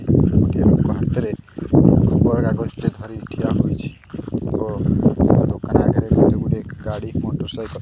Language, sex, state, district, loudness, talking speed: Odia, male, Odisha, Khordha, -18 LUFS, 125 wpm